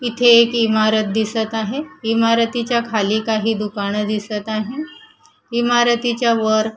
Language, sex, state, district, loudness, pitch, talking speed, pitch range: Marathi, female, Maharashtra, Gondia, -18 LUFS, 225 Hz, 115 wpm, 215-240 Hz